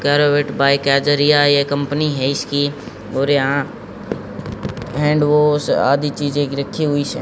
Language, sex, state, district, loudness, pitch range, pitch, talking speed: Hindi, male, Haryana, Jhajjar, -17 LUFS, 140-145 Hz, 145 Hz, 140 wpm